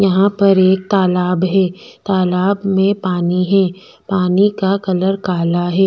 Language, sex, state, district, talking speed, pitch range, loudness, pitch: Hindi, female, Chhattisgarh, Bastar, 145 wpm, 180-195 Hz, -15 LUFS, 190 Hz